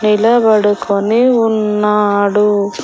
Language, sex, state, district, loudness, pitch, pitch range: Telugu, female, Andhra Pradesh, Annamaya, -12 LUFS, 210 Hz, 205-220 Hz